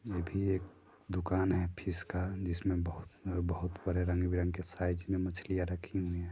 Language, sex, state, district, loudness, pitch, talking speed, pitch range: Hindi, male, Bihar, Sitamarhi, -35 LUFS, 90 Hz, 145 wpm, 90-95 Hz